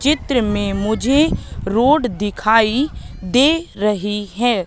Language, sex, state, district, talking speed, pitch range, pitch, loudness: Hindi, female, Madhya Pradesh, Katni, 105 wpm, 205-275 Hz, 225 Hz, -17 LUFS